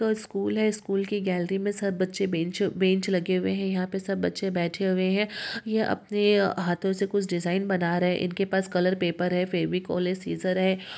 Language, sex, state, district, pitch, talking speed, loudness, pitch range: Hindi, female, Andhra Pradesh, Guntur, 190 Hz, 195 wpm, -26 LUFS, 180-200 Hz